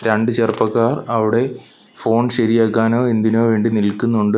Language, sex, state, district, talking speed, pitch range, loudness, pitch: Malayalam, male, Kerala, Kollam, 110 wpm, 110-115 Hz, -17 LUFS, 115 Hz